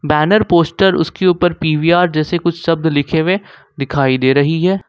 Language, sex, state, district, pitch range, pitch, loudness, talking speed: Hindi, male, Jharkhand, Ranchi, 150-180 Hz, 165 Hz, -14 LUFS, 160 wpm